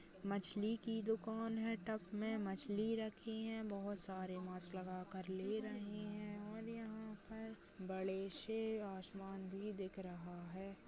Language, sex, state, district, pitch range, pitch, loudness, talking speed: Hindi, female, Uttarakhand, Uttarkashi, 190-220 Hz, 205 Hz, -45 LUFS, 150 wpm